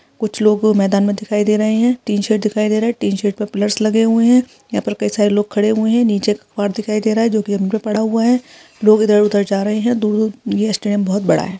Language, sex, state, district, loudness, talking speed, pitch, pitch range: Hindi, female, Uttarakhand, Uttarkashi, -16 LUFS, 280 wpm, 215 Hz, 205-220 Hz